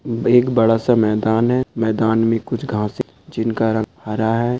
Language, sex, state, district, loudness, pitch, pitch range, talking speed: Hindi, male, Chhattisgarh, Korba, -18 LUFS, 115 Hz, 110-120 Hz, 180 wpm